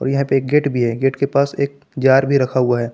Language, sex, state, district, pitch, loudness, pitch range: Hindi, male, Jharkhand, Palamu, 135 Hz, -17 LUFS, 130-140 Hz